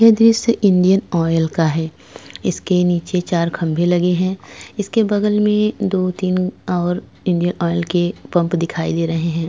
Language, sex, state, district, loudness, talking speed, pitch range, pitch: Hindi, female, Goa, North and South Goa, -18 LUFS, 160 wpm, 170-195 Hz, 180 Hz